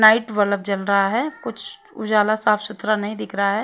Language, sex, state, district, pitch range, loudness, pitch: Hindi, female, Haryana, Rohtak, 200-215 Hz, -20 LUFS, 210 Hz